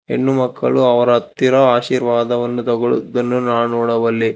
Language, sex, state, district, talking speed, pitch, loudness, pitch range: Kannada, male, Karnataka, Bangalore, 110 wpm, 120 Hz, -16 LUFS, 120-125 Hz